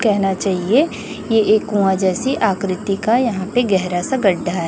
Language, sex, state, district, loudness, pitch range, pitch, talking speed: Hindi, female, Chhattisgarh, Raipur, -17 LUFS, 190-225 Hz, 195 Hz, 180 wpm